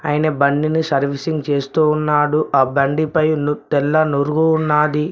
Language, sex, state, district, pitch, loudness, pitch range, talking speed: Telugu, male, Telangana, Mahabubabad, 150 Hz, -17 LUFS, 140-155 Hz, 140 wpm